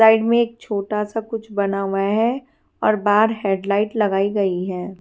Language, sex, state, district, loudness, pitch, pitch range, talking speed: Hindi, female, Punjab, Fazilka, -20 LUFS, 210 Hz, 195-225 Hz, 190 wpm